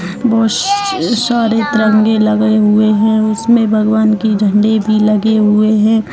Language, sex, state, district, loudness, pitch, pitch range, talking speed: Hindi, female, Rajasthan, Nagaur, -12 LUFS, 215 Hz, 215-225 Hz, 135 wpm